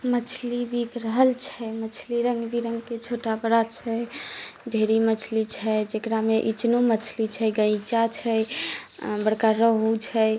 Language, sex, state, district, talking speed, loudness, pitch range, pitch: Maithili, female, Bihar, Samastipur, 140 wpm, -25 LUFS, 220-240 Hz, 230 Hz